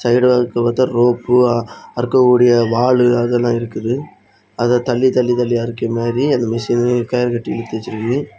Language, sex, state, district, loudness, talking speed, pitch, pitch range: Tamil, male, Tamil Nadu, Kanyakumari, -16 LUFS, 130 wpm, 120 Hz, 120-125 Hz